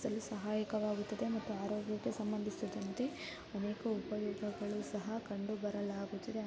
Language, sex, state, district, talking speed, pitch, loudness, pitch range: Kannada, female, Karnataka, Mysore, 95 wpm, 210 Hz, -40 LUFS, 205-215 Hz